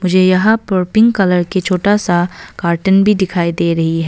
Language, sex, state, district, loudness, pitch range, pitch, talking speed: Hindi, female, Arunachal Pradesh, Longding, -13 LUFS, 175-200 Hz, 185 Hz, 205 wpm